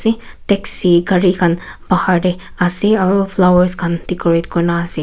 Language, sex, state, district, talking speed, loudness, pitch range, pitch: Nagamese, female, Nagaland, Kohima, 145 wpm, -15 LUFS, 170-190 Hz, 180 Hz